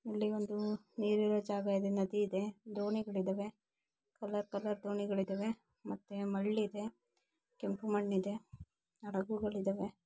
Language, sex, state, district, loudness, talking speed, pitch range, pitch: Kannada, female, Karnataka, Dakshina Kannada, -38 LUFS, 125 wpm, 200-210 Hz, 205 Hz